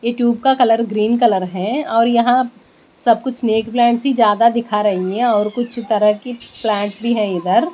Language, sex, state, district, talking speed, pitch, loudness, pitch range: Hindi, female, Bihar, West Champaran, 200 wpm, 230 Hz, -16 LUFS, 210-240 Hz